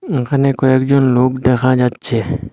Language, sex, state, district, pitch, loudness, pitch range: Bengali, male, Assam, Hailakandi, 130 Hz, -14 LUFS, 125-135 Hz